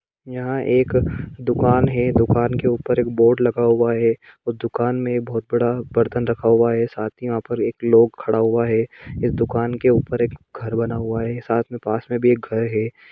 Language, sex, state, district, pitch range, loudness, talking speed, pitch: Hindi, male, Jharkhand, Sahebganj, 115-120 Hz, -20 LUFS, 220 wpm, 120 Hz